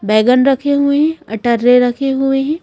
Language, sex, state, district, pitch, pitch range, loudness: Hindi, female, Madhya Pradesh, Bhopal, 270 Hz, 245-285 Hz, -13 LUFS